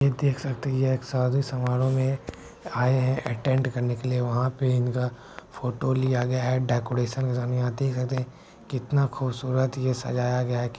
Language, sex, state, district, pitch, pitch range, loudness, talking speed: Maithili, male, Bihar, Begusarai, 130 Hz, 125-130 Hz, -26 LUFS, 160 wpm